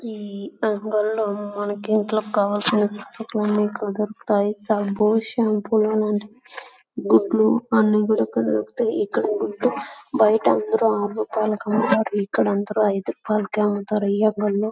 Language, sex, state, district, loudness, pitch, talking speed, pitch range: Telugu, female, Andhra Pradesh, Anantapur, -21 LUFS, 215 Hz, 115 wpm, 205-220 Hz